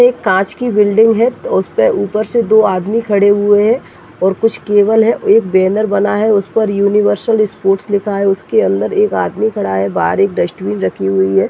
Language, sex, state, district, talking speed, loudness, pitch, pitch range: Hindi, female, Chhattisgarh, Raigarh, 210 wpm, -13 LUFS, 205 Hz, 190-225 Hz